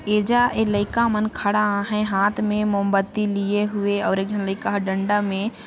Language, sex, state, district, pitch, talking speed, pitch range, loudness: Chhattisgarhi, female, Chhattisgarh, Sarguja, 205 Hz, 190 wpm, 200-210 Hz, -21 LUFS